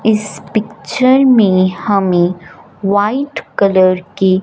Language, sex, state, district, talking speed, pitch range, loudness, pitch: Hindi, female, Punjab, Fazilka, 95 wpm, 185-215 Hz, -13 LUFS, 200 Hz